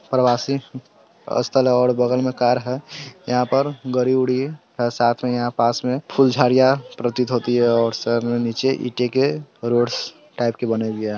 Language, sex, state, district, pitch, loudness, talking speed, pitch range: Hindi, male, Bihar, Sitamarhi, 125 Hz, -20 LUFS, 175 wpm, 120-130 Hz